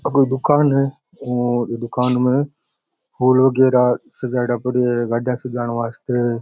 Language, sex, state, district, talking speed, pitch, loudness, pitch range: Rajasthani, male, Rajasthan, Churu, 130 wpm, 125 Hz, -18 LUFS, 120-130 Hz